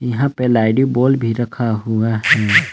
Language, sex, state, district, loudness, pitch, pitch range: Hindi, male, Jharkhand, Palamu, -16 LUFS, 120 Hz, 110-125 Hz